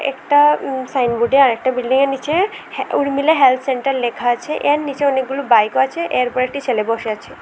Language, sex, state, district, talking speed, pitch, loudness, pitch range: Bengali, female, Tripura, West Tripura, 200 wpm, 265 Hz, -17 LUFS, 250-285 Hz